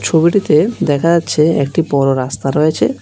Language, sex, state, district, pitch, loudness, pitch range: Bengali, male, Tripura, West Tripura, 150 Hz, -14 LUFS, 140-165 Hz